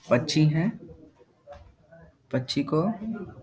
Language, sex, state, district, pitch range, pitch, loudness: Hindi, male, Bihar, Jahanabad, 135-170 Hz, 155 Hz, -26 LUFS